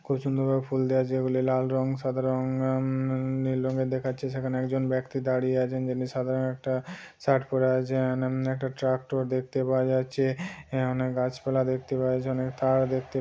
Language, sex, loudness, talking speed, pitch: Bengali, male, -28 LUFS, 195 wpm, 130 Hz